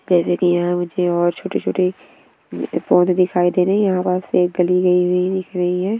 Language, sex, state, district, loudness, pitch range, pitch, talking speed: Hindi, female, Bihar, Araria, -18 LUFS, 175-185 Hz, 180 Hz, 200 wpm